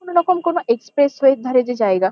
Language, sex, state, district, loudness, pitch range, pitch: Bengali, female, West Bengal, Kolkata, -17 LUFS, 230-345 Hz, 265 Hz